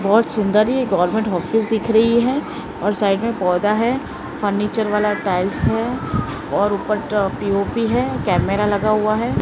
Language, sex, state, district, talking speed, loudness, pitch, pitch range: Hindi, male, Maharashtra, Mumbai Suburban, 165 wpm, -19 LUFS, 215 Hz, 200-225 Hz